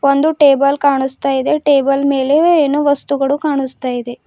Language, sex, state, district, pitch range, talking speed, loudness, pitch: Kannada, female, Karnataka, Bidar, 270-290 Hz, 140 wpm, -14 LUFS, 280 Hz